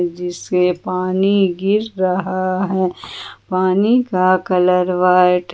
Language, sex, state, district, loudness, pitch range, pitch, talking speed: Hindi, female, Jharkhand, Ranchi, -16 LUFS, 180-190 Hz, 185 Hz, 110 wpm